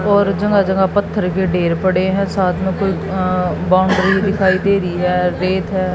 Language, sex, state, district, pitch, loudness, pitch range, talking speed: Hindi, female, Haryana, Jhajjar, 190 Hz, -16 LUFS, 185-195 Hz, 190 wpm